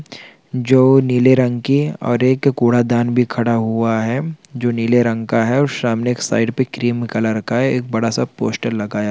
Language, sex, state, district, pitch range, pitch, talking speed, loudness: Hindi, male, Chhattisgarh, Rajnandgaon, 115-130 Hz, 120 Hz, 210 wpm, -17 LUFS